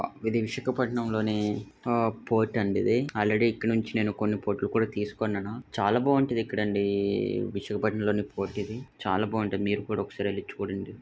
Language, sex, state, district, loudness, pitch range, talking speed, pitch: Telugu, male, Andhra Pradesh, Visakhapatnam, -28 LUFS, 105-115 Hz, 105 wpm, 110 Hz